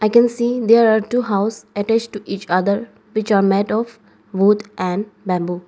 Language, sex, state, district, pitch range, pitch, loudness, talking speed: English, female, Arunachal Pradesh, Lower Dibang Valley, 195-225 Hz, 210 Hz, -18 LUFS, 190 wpm